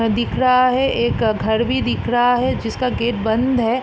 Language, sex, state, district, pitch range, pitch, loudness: Hindi, female, Bihar, East Champaran, 225-255 Hz, 240 Hz, -18 LUFS